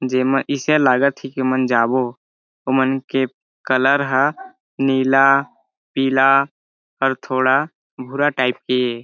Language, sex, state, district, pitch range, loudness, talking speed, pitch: Chhattisgarhi, male, Chhattisgarh, Jashpur, 130-135 Hz, -18 LUFS, 125 wpm, 135 Hz